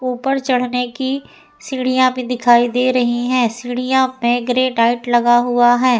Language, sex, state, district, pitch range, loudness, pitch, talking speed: Hindi, female, Uttar Pradesh, Etah, 240-255 Hz, -16 LUFS, 250 Hz, 150 wpm